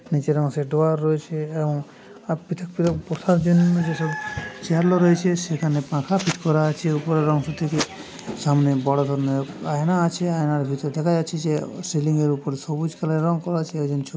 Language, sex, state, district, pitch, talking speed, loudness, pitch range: Bengali, male, West Bengal, Purulia, 155 Hz, 170 wpm, -22 LUFS, 150-170 Hz